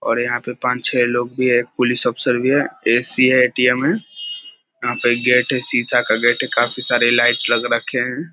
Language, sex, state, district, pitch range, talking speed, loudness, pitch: Hindi, male, Bihar, Vaishali, 120-125 Hz, 215 wpm, -17 LUFS, 125 Hz